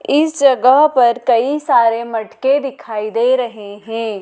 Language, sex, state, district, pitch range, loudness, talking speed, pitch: Hindi, female, Madhya Pradesh, Dhar, 225-270 Hz, -15 LUFS, 140 wpm, 240 Hz